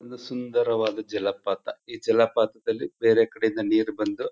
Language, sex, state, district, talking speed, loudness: Kannada, male, Karnataka, Chamarajanagar, 125 wpm, -25 LUFS